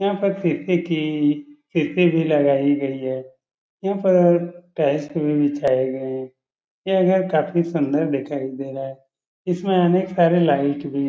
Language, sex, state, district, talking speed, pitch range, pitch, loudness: Hindi, male, Bihar, Araria, 160 wpm, 135-175 Hz, 150 Hz, -20 LUFS